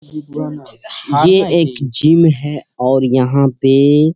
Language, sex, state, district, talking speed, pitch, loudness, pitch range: Hindi, male, Bihar, Jamui, 115 wpm, 145 Hz, -13 LUFS, 135-155 Hz